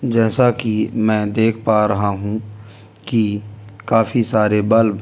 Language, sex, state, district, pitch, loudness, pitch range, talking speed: Hindi, male, Delhi, New Delhi, 110 Hz, -17 LUFS, 105-115 Hz, 155 wpm